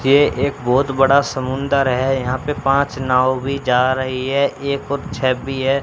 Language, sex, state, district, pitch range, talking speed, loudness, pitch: Hindi, male, Haryana, Charkhi Dadri, 130-140 Hz, 195 wpm, -18 LUFS, 135 Hz